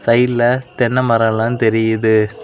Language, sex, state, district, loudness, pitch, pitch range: Tamil, male, Tamil Nadu, Kanyakumari, -15 LUFS, 115 Hz, 110-120 Hz